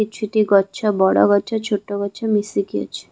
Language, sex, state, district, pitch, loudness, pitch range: Odia, female, Odisha, Khordha, 205 Hz, -19 LUFS, 200-215 Hz